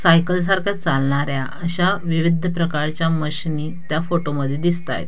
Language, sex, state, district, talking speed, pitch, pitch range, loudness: Marathi, female, Maharashtra, Dhule, 130 wpm, 165 Hz, 150-175 Hz, -20 LUFS